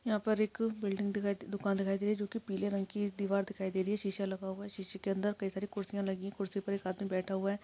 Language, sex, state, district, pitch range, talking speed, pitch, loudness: Hindi, female, Maharashtra, Aurangabad, 195-205 Hz, 300 wpm, 200 Hz, -36 LUFS